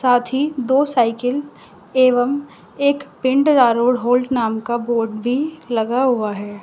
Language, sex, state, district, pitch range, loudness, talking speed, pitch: Hindi, female, Uttar Pradesh, Varanasi, 235-275 Hz, -18 LUFS, 145 wpm, 250 Hz